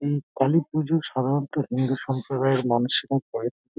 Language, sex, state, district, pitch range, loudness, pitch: Bengali, male, West Bengal, Dakshin Dinajpur, 130-145 Hz, -25 LUFS, 135 Hz